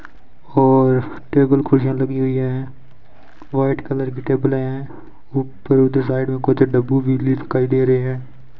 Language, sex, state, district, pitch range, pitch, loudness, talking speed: Hindi, male, Rajasthan, Bikaner, 130-135 Hz, 130 Hz, -18 LUFS, 155 wpm